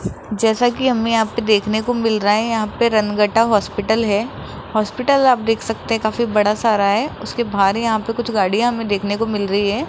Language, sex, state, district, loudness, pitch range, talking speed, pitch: Hindi, female, Rajasthan, Jaipur, -18 LUFS, 210-230 Hz, 215 wpm, 220 Hz